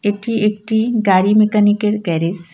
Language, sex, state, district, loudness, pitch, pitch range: Bengali, female, West Bengal, Cooch Behar, -15 LUFS, 210 Hz, 195-215 Hz